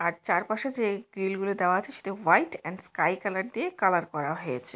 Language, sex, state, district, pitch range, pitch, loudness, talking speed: Bengali, female, West Bengal, Jalpaiguri, 170-200 Hz, 190 Hz, -28 LUFS, 200 wpm